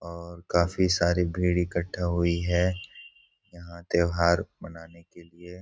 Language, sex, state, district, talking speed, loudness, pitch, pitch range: Hindi, male, Bihar, Gopalganj, 130 wpm, -26 LUFS, 85 Hz, 85-90 Hz